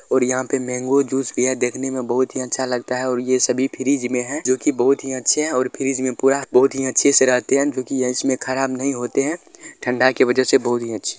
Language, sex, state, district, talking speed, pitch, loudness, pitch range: Hindi, male, Bihar, Araria, 255 wpm, 130 Hz, -19 LUFS, 125-135 Hz